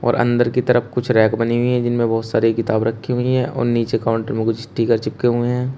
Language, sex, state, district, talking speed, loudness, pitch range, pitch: Hindi, male, Uttar Pradesh, Shamli, 260 wpm, -18 LUFS, 115-125 Hz, 120 Hz